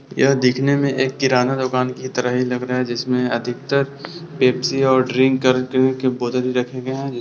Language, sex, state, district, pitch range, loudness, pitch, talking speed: Hindi, male, Bihar, Sitamarhi, 125-135 Hz, -19 LUFS, 130 Hz, 185 wpm